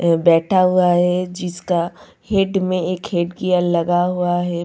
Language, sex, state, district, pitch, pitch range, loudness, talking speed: Hindi, female, Goa, North and South Goa, 180 Hz, 175-185 Hz, -18 LUFS, 155 wpm